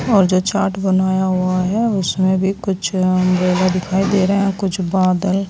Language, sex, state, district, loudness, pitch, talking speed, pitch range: Hindi, female, Uttar Pradesh, Saharanpur, -17 LUFS, 190 Hz, 175 wpm, 185-195 Hz